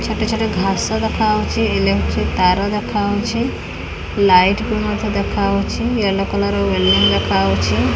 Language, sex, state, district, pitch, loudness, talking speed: Odia, female, Odisha, Khordha, 195 Hz, -17 LUFS, 135 wpm